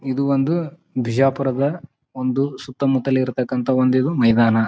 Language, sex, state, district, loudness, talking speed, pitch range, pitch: Kannada, male, Karnataka, Bijapur, -20 LUFS, 115 wpm, 130-140 Hz, 130 Hz